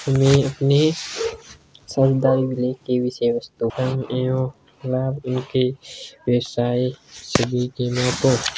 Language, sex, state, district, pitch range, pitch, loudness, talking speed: Hindi, male, Rajasthan, Churu, 125-135 Hz, 130 Hz, -21 LUFS, 50 wpm